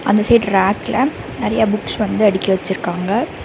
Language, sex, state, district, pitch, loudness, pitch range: Tamil, female, Karnataka, Bangalore, 210 Hz, -17 LUFS, 190-230 Hz